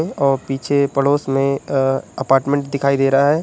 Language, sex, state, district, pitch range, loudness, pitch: Hindi, male, Uttar Pradesh, Budaun, 135-140 Hz, -17 LUFS, 140 Hz